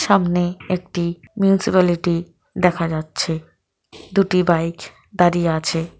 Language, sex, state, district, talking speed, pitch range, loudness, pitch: Bengali, female, West Bengal, Paschim Medinipur, 90 wpm, 165-185 Hz, -19 LUFS, 175 Hz